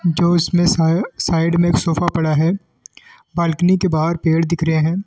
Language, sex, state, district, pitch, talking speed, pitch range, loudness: Hindi, male, Delhi, New Delhi, 170 Hz, 190 wpm, 165-175 Hz, -17 LUFS